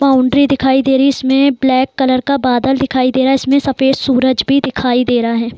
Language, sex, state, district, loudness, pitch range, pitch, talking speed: Hindi, female, Bihar, Darbhanga, -13 LUFS, 255-275 Hz, 265 Hz, 235 wpm